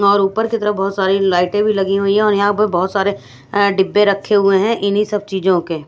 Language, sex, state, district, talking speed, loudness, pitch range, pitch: Hindi, female, Odisha, Nuapada, 255 wpm, -15 LUFS, 195-205 Hz, 200 Hz